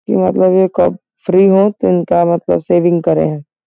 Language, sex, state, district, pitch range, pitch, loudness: Hindi, female, Uttar Pradesh, Gorakhpur, 170-185 Hz, 175 Hz, -13 LUFS